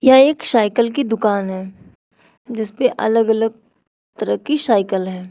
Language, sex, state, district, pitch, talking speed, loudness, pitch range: Hindi, female, Uttar Pradesh, Shamli, 225 Hz, 145 wpm, -17 LUFS, 205-255 Hz